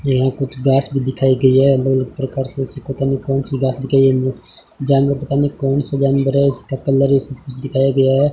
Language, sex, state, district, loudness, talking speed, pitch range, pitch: Hindi, male, Rajasthan, Bikaner, -17 LUFS, 210 wpm, 135-140 Hz, 135 Hz